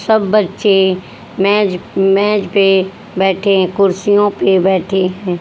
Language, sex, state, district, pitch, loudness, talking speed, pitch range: Hindi, female, Haryana, Rohtak, 195 Hz, -13 LUFS, 120 wpm, 185-205 Hz